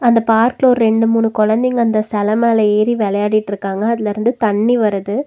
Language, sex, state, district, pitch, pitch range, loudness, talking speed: Tamil, female, Tamil Nadu, Nilgiris, 220 Hz, 210-235 Hz, -15 LUFS, 160 wpm